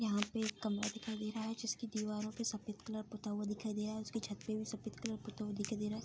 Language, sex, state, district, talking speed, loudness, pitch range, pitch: Hindi, female, Bihar, Bhagalpur, 305 wpm, -41 LUFS, 210-220 Hz, 215 Hz